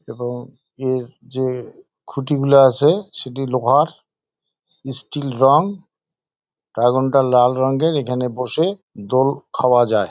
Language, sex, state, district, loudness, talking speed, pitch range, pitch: Bengali, male, West Bengal, Jalpaiguri, -18 LUFS, 115 wpm, 125-145 Hz, 135 Hz